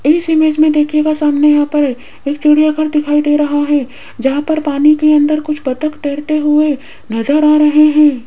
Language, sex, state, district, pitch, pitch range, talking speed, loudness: Hindi, female, Rajasthan, Jaipur, 300 Hz, 290-305 Hz, 190 wpm, -12 LUFS